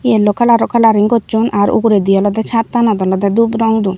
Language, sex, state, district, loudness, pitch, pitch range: Chakma, female, Tripura, Unakoti, -12 LUFS, 220 Hz, 205-230 Hz